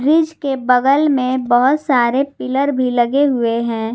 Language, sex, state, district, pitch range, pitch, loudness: Hindi, female, Jharkhand, Garhwa, 245-280 Hz, 260 Hz, -16 LUFS